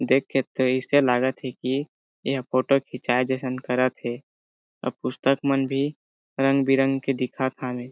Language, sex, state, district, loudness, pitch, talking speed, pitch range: Chhattisgarhi, male, Chhattisgarh, Jashpur, -24 LUFS, 130 Hz, 150 wpm, 125-135 Hz